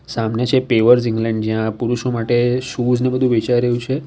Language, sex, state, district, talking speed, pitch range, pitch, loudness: Gujarati, male, Gujarat, Valsad, 190 wpm, 115-125 Hz, 120 Hz, -17 LUFS